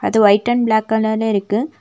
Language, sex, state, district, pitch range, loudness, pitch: Tamil, female, Tamil Nadu, Nilgiris, 210-225 Hz, -16 LUFS, 220 Hz